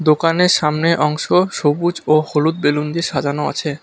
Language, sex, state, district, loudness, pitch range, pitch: Bengali, male, West Bengal, Alipurduar, -16 LUFS, 150-170 Hz, 155 Hz